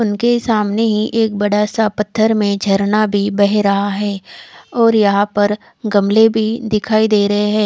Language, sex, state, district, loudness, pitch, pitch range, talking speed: Hindi, female, Odisha, Khordha, -15 LUFS, 210 Hz, 205-220 Hz, 170 wpm